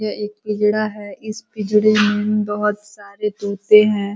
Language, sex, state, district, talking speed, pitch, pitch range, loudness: Hindi, female, Uttar Pradesh, Ghazipur, 160 wpm, 210 Hz, 205-215 Hz, -18 LUFS